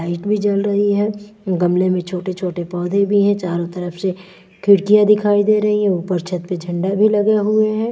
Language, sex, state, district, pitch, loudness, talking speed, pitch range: Hindi, female, Bihar, West Champaran, 195 Hz, -17 LUFS, 210 wpm, 180-210 Hz